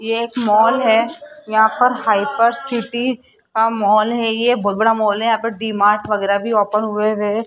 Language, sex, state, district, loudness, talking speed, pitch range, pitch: Hindi, female, Rajasthan, Jaipur, -16 LUFS, 195 wpm, 210-235 Hz, 225 Hz